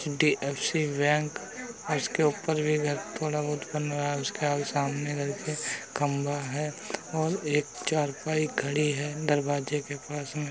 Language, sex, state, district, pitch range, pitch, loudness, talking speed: Hindi, male, Uttar Pradesh, Jalaun, 145-150 Hz, 150 Hz, -29 LUFS, 145 wpm